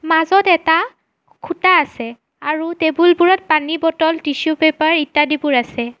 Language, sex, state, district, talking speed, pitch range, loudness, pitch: Assamese, female, Assam, Sonitpur, 130 wpm, 295-335 Hz, -15 LUFS, 320 Hz